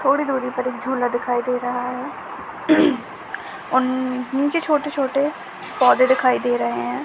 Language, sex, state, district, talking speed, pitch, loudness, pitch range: Hindi, female, Chhattisgarh, Kabirdham, 160 wpm, 255 Hz, -20 LUFS, 250-280 Hz